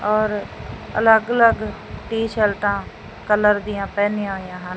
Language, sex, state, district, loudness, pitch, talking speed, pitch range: Punjabi, male, Punjab, Fazilka, -20 LUFS, 210 Hz, 115 wpm, 200-220 Hz